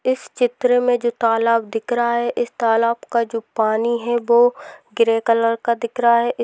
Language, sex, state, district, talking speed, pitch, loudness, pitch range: Hindi, female, Rajasthan, Nagaur, 195 wpm, 235 Hz, -18 LUFS, 230-240 Hz